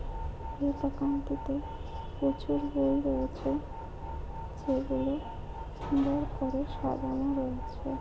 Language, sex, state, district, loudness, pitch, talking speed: Bengali, female, West Bengal, Jhargram, -33 LUFS, 265 Hz, 75 wpm